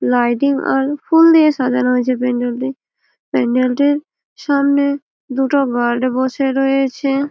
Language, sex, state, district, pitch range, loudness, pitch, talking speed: Bengali, female, West Bengal, Malda, 250-280 Hz, -16 LUFS, 270 Hz, 125 wpm